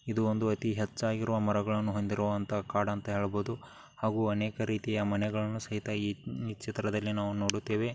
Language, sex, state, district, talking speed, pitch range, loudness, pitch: Kannada, male, Karnataka, Dakshina Kannada, 135 wpm, 105-110 Hz, -32 LUFS, 105 Hz